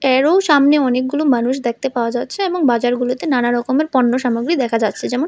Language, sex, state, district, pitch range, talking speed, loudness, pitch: Bengali, female, Tripura, West Tripura, 240-290 Hz, 195 wpm, -16 LUFS, 255 Hz